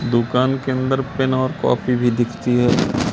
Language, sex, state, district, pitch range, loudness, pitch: Hindi, male, Madhya Pradesh, Katni, 120-130 Hz, -19 LUFS, 125 Hz